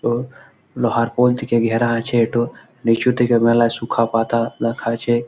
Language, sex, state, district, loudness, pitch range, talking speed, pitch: Bengali, male, West Bengal, Malda, -18 LUFS, 115-120 Hz, 160 wpm, 115 Hz